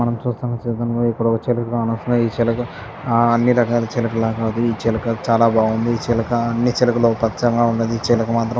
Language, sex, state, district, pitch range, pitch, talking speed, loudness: Telugu, male, Andhra Pradesh, Chittoor, 115-120 Hz, 115 Hz, 190 wpm, -18 LUFS